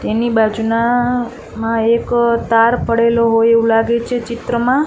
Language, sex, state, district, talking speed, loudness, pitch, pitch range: Gujarati, female, Gujarat, Gandhinagar, 125 wpm, -15 LUFS, 235 Hz, 230-235 Hz